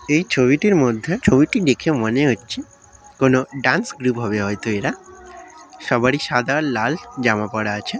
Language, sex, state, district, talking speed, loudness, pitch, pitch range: Bengali, male, West Bengal, Dakshin Dinajpur, 150 wpm, -19 LUFS, 130 Hz, 115-155 Hz